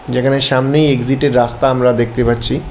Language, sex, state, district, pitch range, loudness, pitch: Bengali, male, Tripura, West Tripura, 120-135 Hz, -14 LUFS, 130 Hz